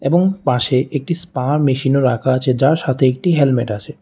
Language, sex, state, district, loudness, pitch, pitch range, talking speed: Bengali, male, Tripura, West Tripura, -16 LUFS, 135 Hz, 130-150 Hz, 180 wpm